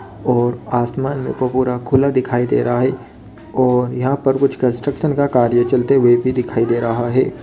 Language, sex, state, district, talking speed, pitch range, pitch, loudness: Hindi, male, Jharkhand, Sahebganj, 195 wpm, 120-130 Hz, 125 Hz, -17 LUFS